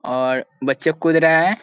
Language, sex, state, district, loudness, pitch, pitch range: Hindi, male, Bihar, Sitamarhi, -18 LUFS, 160 Hz, 130-165 Hz